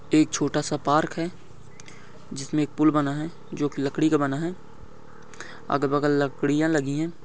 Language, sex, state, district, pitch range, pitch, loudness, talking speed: Hindi, male, Goa, North and South Goa, 145-155 Hz, 150 Hz, -25 LUFS, 175 wpm